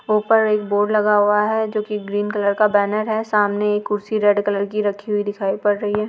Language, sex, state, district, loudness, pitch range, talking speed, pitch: Hindi, female, Chhattisgarh, Balrampur, -19 LUFS, 205-215 Hz, 245 wpm, 210 Hz